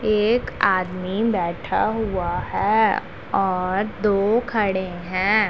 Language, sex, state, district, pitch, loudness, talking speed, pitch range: Hindi, female, Punjab, Pathankot, 200 Hz, -21 LUFS, 100 wpm, 185-220 Hz